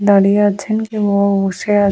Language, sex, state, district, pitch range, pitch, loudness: Bengali, female, West Bengal, Jalpaiguri, 200-205 Hz, 200 Hz, -15 LUFS